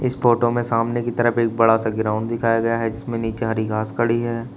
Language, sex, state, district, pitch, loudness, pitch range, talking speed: Hindi, male, Uttar Pradesh, Shamli, 115 Hz, -20 LUFS, 110-120 Hz, 250 wpm